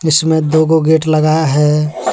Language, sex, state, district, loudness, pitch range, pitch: Hindi, male, Jharkhand, Deoghar, -12 LUFS, 150-160 Hz, 155 Hz